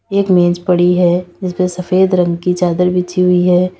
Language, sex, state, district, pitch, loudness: Hindi, female, Uttar Pradesh, Lalitpur, 180 Hz, -13 LUFS